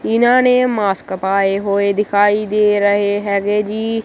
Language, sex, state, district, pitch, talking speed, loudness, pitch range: Punjabi, female, Punjab, Kapurthala, 205 Hz, 150 wpm, -15 LUFS, 200-215 Hz